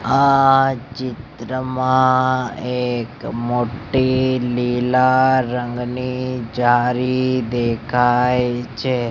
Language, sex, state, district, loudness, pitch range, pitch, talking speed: Gujarati, male, Gujarat, Gandhinagar, -18 LUFS, 120-130 Hz, 125 Hz, 60 wpm